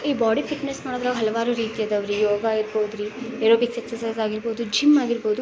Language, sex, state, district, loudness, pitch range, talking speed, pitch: Kannada, female, Karnataka, Belgaum, -23 LUFS, 215-245 Hz, 175 wpm, 230 Hz